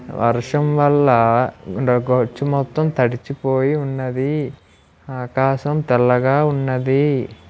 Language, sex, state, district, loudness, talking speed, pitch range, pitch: Telugu, male, Andhra Pradesh, Srikakulam, -18 LUFS, 70 wpm, 125-140 Hz, 130 Hz